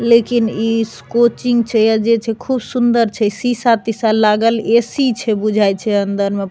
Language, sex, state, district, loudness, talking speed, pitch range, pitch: Maithili, female, Bihar, Begusarai, -15 LUFS, 185 wpm, 215-235 Hz, 225 Hz